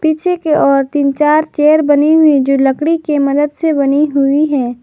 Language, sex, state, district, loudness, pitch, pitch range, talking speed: Hindi, female, Jharkhand, Garhwa, -12 LUFS, 295 Hz, 280-310 Hz, 200 wpm